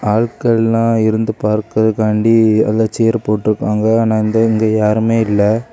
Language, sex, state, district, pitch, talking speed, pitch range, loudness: Tamil, male, Tamil Nadu, Kanyakumari, 110 Hz, 115 wpm, 110-115 Hz, -14 LUFS